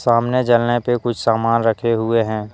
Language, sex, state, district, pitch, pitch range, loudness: Hindi, male, Jharkhand, Deoghar, 115 Hz, 115-120 Hz, -17 LUFS